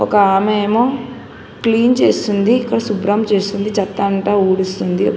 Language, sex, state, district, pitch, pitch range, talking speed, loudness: Telugu, female, Telangana, Hyderabad, 205 Hz, 200-225 Hz, 130 wpm, -15 LUFS